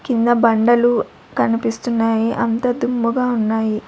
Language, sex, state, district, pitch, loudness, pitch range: Telugu, female, Andhra Pradesh, Sri Satya Sai, 235 Hz, -17 LUFS, 225-240 Hz